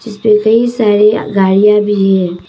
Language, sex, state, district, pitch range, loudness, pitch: Hindi, female, Arunachal Pradesh, Papum Pare, 195-220 Hz, -10 LUFS, 210 Hz